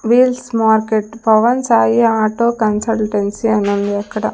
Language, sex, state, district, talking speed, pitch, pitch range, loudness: Telugu, female, Andhra Pradesh, Sri Satya Sai, 110 wpm, 220 Hz, 210-230 Hz, -15 LUFS